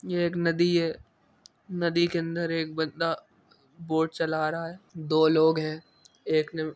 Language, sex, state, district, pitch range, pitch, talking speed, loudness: Hindi, male, Uttar Pradesh, Etah, 160-170 Hz, 165 Hz, 180 wpm, -27 LUFS